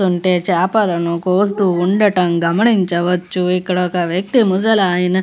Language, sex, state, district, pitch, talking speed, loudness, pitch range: Telugu, female, Andhra Pradesh, Visakhapatnam, 180 Hz, 140 wpm, -15 LUFS, 180-200 Hz